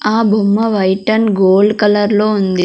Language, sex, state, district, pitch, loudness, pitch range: Telugu, female, Andhra Pradesh, Sri Satya Sai, 210 Hz, -12 LUFS, 195-215 Hz